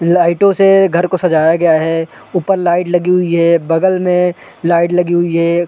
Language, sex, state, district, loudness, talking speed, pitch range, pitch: Hindi, male, Chhattisgarh, Raigarh, -12 LUFS, 190 wpm, 170-180 Hz, 175 Hz